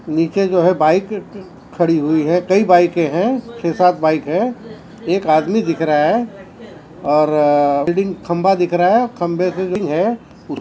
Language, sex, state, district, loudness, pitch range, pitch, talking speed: Hindi, male, Maharashtra, Mumbai Suburban, -16 LUFS, 160-195 Hz, 180 Hz, 165 wpm